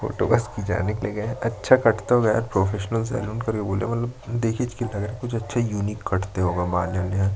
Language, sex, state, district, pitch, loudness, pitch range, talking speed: Hindi, male, Chhattisgarh, Jashpur, 110 Hz, -24 LUFS, 100-115 Hz, 220 wpm